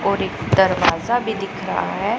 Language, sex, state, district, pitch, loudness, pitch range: Hindi, female, Punjab, Pathankot, 190 Hz, -19 LUFS, 180-220 Hz